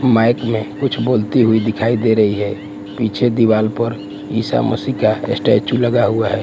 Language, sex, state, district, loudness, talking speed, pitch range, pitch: Hindi, male, Gujarat, Gandhinagar, -16 LUFS, 175 wpm, 105-120 Hz, 115 Hz